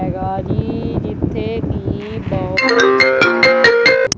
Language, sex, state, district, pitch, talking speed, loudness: Punjabi, male, Punjab, Kapurthala, 260 Hz, 85 wpm, -14 LUFS